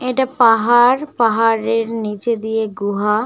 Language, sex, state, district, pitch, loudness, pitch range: Bengali, female, West Bengal, Malda, 225 Hz, -16 LUFS, 220-240 Hz